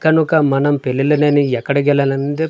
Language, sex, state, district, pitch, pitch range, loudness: Telugu, male, Andhra Pradesh, Manyam, 145 Hz, 135-150 Hz, -15 LUFS